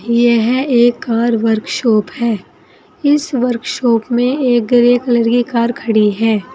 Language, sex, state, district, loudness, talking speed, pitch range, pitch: Hindi, female, Uttar Pradesh, Saharanpur, -14 LUFS, 135 wpm, 230-250 Hz, 240 Hz